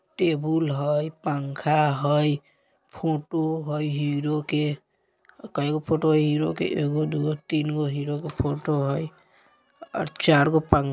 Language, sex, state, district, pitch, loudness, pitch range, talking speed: Bajjika, male, Bihar, Vaishali, 150 Hz, -25 LUFS, 145-160 Hz, 145 wpm